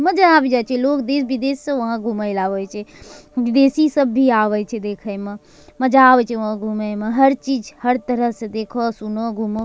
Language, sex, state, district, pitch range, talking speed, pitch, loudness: Angika, female, Bihar, Bhagalpur, 215-270 Hz, 200 wpm, 240 Hz, -18 LUFS